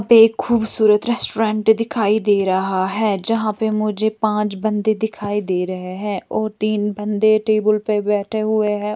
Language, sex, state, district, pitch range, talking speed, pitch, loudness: Hindi, female, Bihar, Bhagalpur, 205-220 Hz, 160 wpm, 215 Hz, -18 LUFS